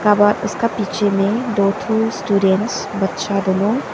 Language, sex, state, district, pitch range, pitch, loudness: Hindi, female, Arunachal Pradesh, Papum Pare, 195-220 Hz, 205 Hz, -18 LUFS